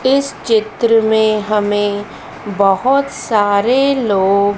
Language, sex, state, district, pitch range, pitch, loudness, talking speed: Hindi, female, Madhya Pradesh, Dhar, 205-250 Hz, 215 Hz, -14 LUFS, 90 wpm